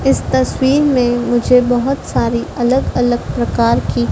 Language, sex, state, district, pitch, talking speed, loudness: Hindi, female, Madhya Pradesh, Dhar, 240 Hz, 145 wpm, -15 LUFS